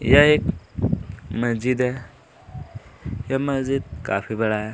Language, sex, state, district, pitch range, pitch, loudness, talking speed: Hindi, male, Chhattisgarh, Kabirdham, 105-135 Hz, 120 Hz, -22 LUFS, 115 wpm